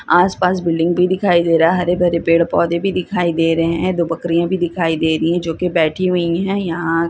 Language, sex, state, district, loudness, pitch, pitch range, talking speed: Hindi, female, Bihar, Saran, -16 LUFS, 170 Hz, 165-180 Hz, 230 wpm